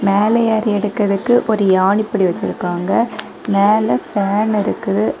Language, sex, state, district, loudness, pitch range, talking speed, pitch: Tamil, female, Tamil Nadu, Kanyakumari, -16 LUFS, 195-220 Hz, 105 wpm, 205 Hz